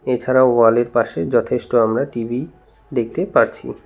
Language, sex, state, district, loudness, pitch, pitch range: Bengali, male, West Bengal, Cooch Behar, -18 LUFS, 125 Hz, 120-135 Hz